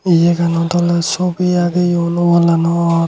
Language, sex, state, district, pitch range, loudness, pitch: Chakma, male, Tripura, Unakoti, 170-175 Hz, -14 LUFS, 170 Hz